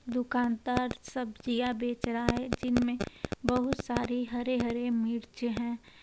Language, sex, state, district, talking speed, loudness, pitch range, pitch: Hindi, female, Uttar Pradesh, Hamirpur, 120 wpm, -32 LUFS, 235-250 Hz, 245 Hz